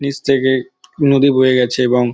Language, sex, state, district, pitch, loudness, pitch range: Bengali, male, West Bengal, Dakshin Dinajpur, 130 Hz, -14 LUFS, 125-140 Hz